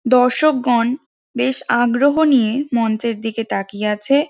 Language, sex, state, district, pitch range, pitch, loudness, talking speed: Bengali, female, West Bengal, Jhargram, 230-275 Hz, 245 Hz, -17 LUFS, 110 wpm